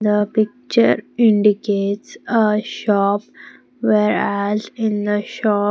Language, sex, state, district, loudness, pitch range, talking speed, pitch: English, female, Punjab, Pathankot, -18 LUFS, 205-220 Hz, 95 wpm, 210 Hz